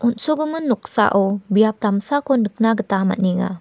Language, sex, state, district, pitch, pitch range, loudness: Garo, female, Meghalaya, West Garo Hills, 215 Hz, 195-240 Hz, -19 LUFS